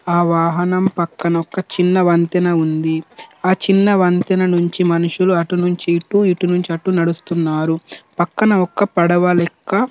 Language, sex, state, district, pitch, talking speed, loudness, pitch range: Telugu, male, Telangana, Nalgonda, 175 Hz, 145 wpm, -16 LUFS, 170-185 Hz